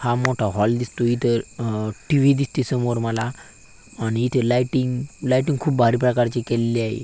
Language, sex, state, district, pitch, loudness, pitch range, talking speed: Marathi, male, Maharashtra, Aurangabad, 120 Hz, -21 LUFS, 115-130 Hz, 160 wpm